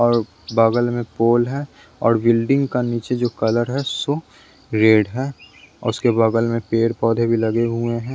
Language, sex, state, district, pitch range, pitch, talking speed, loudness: Hindi, male, Bihar, West Champaran, 115-120 Hz, 115 Hz, 185 wpm, -19 LUFS